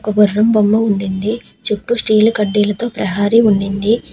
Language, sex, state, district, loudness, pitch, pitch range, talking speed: Telugu, female, Telangana, Hyderabad, -15 LUFS, 210 Hz, 205-225 Hz, 130 wpm